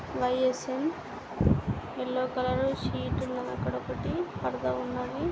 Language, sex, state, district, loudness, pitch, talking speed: Telugu, female, Andhra Pradesh, Guntur, -31 LUFS, 190 Hz, 90 wpm